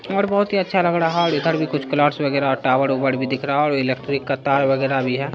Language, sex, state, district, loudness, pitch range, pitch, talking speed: Hindi, male, Bihar, Saharsa, -19 LUFS, 135-165 Hz, 140 Hz, 270 wpm